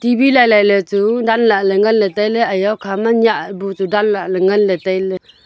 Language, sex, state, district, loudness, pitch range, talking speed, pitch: Wancho, female, Arunachal Pradesh, Longding, -14 LUFS, 195-225 Hz, 210 wpm, 205 Hz